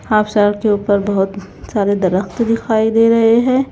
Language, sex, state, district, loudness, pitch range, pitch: Hindi, female, Chhattisgarh, Raipur, -15 LUFS, 200-230 Hz, 210 Hz